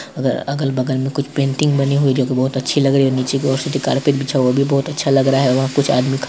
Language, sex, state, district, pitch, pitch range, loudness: Hindi, male, Bihar, Saharsa, 135 Hz, 130-140 Hz, -17 LUFS